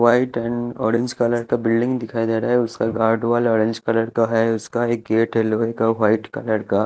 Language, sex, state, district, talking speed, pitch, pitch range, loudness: Hindi, male, Chhattisgarh, Raipur, 220 wpm, 115 Hz, 115-120 Hz, -20 LUFS